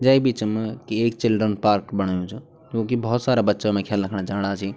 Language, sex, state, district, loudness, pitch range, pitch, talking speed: Garhwali, male, Uttarakhand, Tehri Garhwal, -22 LUFS, 100-120 Hz, 110 Hz, 215 wpm